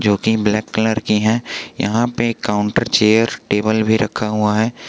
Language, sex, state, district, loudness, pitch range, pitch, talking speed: Hindi, male, Jharkhand, Garhwa, -17 LUFS, 105-110 Hz, 110 Hz, 160 wpm